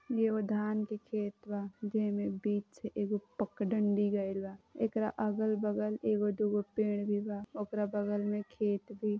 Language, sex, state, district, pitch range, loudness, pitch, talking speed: Bhojpuri, female, Uttar Pradesh, Gorakhpur, 205-215 Hz, -35 LUFS, 210 Hz, 175 wpm